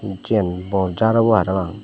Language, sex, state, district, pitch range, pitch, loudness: Chakma, male, Tripura, Dhalai, 95-110 Hz, 100 Hz, -19 LUFS